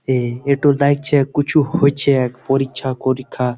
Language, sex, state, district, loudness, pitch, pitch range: Bengali, male, West Bengal, Malda, -17 LUFS, 135 Hz, 130-140 Hz